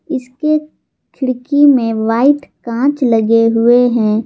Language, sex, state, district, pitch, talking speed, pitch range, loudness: Hindi, female, Jharkhand, Palamu, 250 Hz, 110 wpm, 230-285 Hz, -13 LUFS